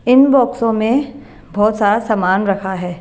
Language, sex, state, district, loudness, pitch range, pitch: Hindi, female, Bihar, Katihar, -15 LUFS, 195-250 Hz, 215 Hz